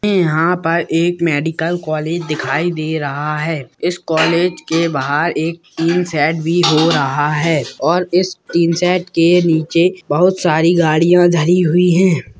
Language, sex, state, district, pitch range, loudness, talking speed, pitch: Hindi, male, Bihar, Purnia, 155-175 Hz, -15 LUFS, 155 wpm, 165 Hz